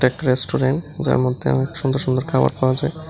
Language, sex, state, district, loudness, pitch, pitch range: Bengali, male, Tripura, West Tripura, -19 LUFS, 130 Hz, 130-145 Hz